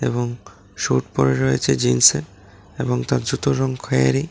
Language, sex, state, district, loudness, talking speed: Bengali, male, Tripura, West Tripura, -19 LUFS, 140 wpm